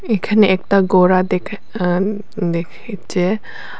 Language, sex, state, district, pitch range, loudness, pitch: Bengali, female, Tripura, West Tripura, 180-210 Hz, -17 LUFS, 195 Hz